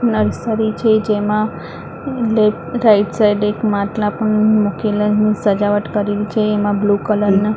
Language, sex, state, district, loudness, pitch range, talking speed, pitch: Gujarati, female, Maharashtra, Mumbai Suburban, -16 LUFS, 205-215 Hz, 135 wpm, 210 Hz